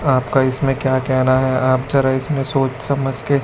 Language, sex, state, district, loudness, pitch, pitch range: Hindi, male, Chhattisgarh, Raipur, -17 LUFS, 130 Hz, 130-135 Hz